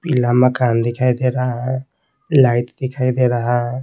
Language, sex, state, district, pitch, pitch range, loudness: Hindi, male, Bihar, Patna, 125 Hz, 120-130 Hz, -17 LUFS